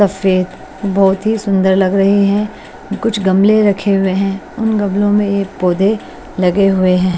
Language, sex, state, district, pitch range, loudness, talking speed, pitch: Hindi, female, Bihar, West Champaran, 190-205 Hz, -14 LUFS, 165 wpm, 195 Hz